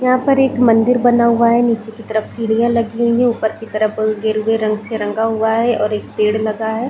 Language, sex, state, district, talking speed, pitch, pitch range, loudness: Hindi, female, Chhattisgarh, Bilaspur, 260 wpm, 225 Hz, 220-235 Hz, -16 LUFS